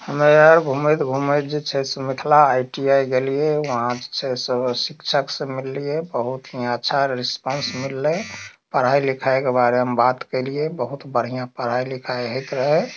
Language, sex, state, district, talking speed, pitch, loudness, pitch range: Maithili, male, Bihar, Darbhanga, 155 wpm, 135 Hz, -20 LUFS, 125-140 Hz